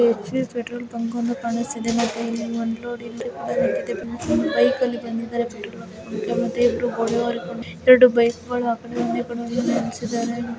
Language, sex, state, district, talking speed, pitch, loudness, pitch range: Kannada, female, Karnataka, Dharwad, 180 wpm, 235 Hz, -22 LUFS, 230-245 Hz